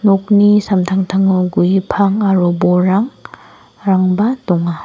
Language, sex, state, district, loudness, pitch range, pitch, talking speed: Garo, female, Meghalaya, West Garo Hills, -14 LUFS, 185-205 Hz, 190 Hz, 85 wpm